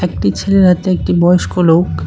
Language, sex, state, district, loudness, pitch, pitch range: Bengali, male, West Bengal, Cooch Behar, -12 LUFS, 180 Hz, 165-180 Hz